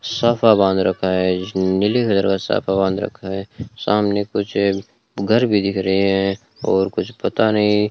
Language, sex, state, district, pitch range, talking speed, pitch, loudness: Hindi, male, Rajasthan, Bikaner, 95-110 Hz, 175 wpm, 100 Hz, -18 LUFS